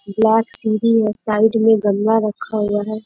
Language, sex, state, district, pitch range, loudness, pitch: Hindi, female, Bihar, Bhagalpur, 210-225 Hz, -17 LUFS, 215 Hz